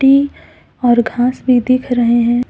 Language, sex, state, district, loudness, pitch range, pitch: Hindi, female, Jharkhand, Deoghar, -14 LUFS, 240-255 Hz, 245 Hz